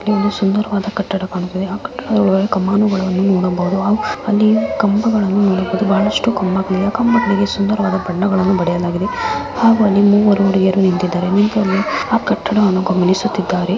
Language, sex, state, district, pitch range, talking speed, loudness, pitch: Kannada, female, Karnataka, Mysore, 190-210 Hz, 120 wpm, -15 LUFS, 200 Hz